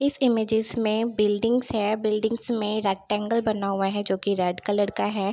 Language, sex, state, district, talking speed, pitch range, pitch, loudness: Hindi, female, Bihar, Begusarai, 180 wpm, 200-225 Hz, 215 Hz, -25 LUFS